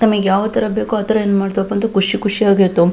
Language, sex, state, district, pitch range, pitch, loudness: Kannada, female, Karnataka, Belgaum, 195-215 Hz, 200 Hz, -16 LUFS